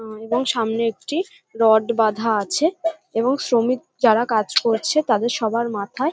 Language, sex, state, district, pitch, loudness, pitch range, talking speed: Bengali, female, West Bengal, North 24 Parganas, 235 Hz, -20 LUFS, 220-265 Hz, 125 wpm